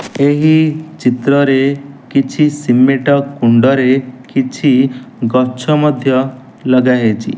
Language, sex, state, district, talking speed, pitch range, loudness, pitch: Odia, male, Odisha, Nuapada, 75 wpm, 130-145 Hz, -13 LUFS, 135 Hz